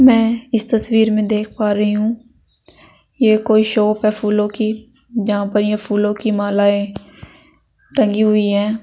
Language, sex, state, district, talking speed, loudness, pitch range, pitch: Hindi, female, Uttar Pradesh, Saharanpur, 155 wpm, -16 LUFS, 210-225 Hz, 215 Hz